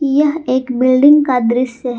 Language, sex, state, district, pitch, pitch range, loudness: Hindi, female, Jharkhand, Palamu, 255 Hz, 250-290 Hz, -13 LUFS